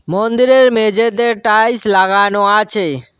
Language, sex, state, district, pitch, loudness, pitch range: Bengali, male, West Bengal, Cooch Behar, 215 Hz, -12 LUFS, 200-230 Hz